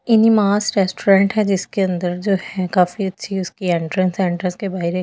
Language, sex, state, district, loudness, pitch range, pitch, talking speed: Hindi, female, Delhi, New Delhi, -18 LUFS, 180-200 Hz, 190 Hz, 215 wpm